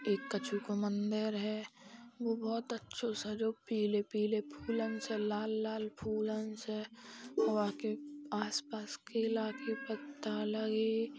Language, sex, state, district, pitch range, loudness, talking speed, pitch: Bundeli, female, Uttar Pradesh, Hamirpur, 215-230 Hz, -37 LUFS, 120 wpm, 220 Hz